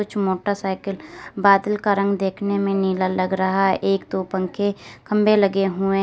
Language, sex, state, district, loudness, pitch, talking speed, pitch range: Hindi, female, Uttar Pradesh, Lalitpur, -21 LUFS, 195 Hz, 170 wpm, 190-200 Hz